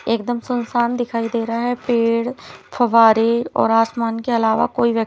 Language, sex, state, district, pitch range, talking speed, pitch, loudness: Hindi, female, Chhattisgarh, Bilaspur, 230-240 Hz, 165 wpm, 230 Hz, -18 LUFS